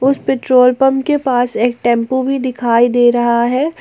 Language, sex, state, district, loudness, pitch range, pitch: Hindi, female, Jharkhand, Ranchi, -13 LUFS, 240-270 Hz, 250 Hz